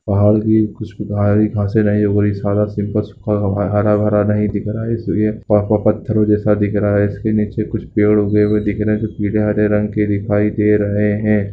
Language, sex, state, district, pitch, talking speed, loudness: Hindi, male, Bihar, Lakhisarai, 105 Hz, 210 wpm, -16 LUFS